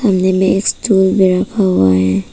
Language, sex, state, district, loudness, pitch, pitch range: Hindi, female, Arunachal Pradesh, Papum Pare, -13 LUFS, 185 Hz, 180-195 Hz